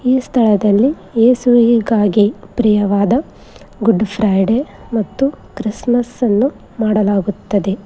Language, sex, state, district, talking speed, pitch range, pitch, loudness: Kannada, female, Karnataka, Koppal, 75 wpm, 205-245 Hz, 220 Hz, -15 LUFS